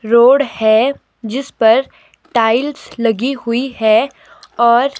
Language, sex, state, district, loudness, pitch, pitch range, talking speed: Hindi, female, Himachal Pradesh, Shimla, -14 LUFS, 235 Hz, 225-270 Hz, 110 wpm